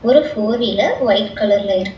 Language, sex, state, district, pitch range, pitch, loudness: Tamil, female, Tamil Nadu, Chennai, 200-240 Hz, 210 Hz, -16 LUFS